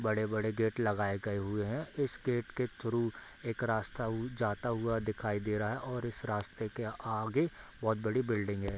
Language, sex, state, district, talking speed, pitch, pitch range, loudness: Hindi, male, Bihar, Bhagalpur, 190 wpm, 110 Hz, 105-120 Hz, -35 LUFS